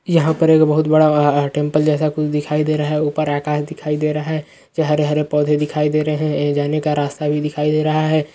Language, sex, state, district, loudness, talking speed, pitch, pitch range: Magahi, male, Bihar, Gaya, -17 LUFS, 235 wpm, 150 Hz, 150-155 Hz